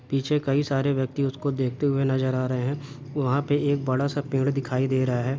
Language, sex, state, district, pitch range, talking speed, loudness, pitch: Hindi, male, Andhra Pradesh, Guntur, 130-140 Hz, 235 wpm, -25 LUFS, 135 Hz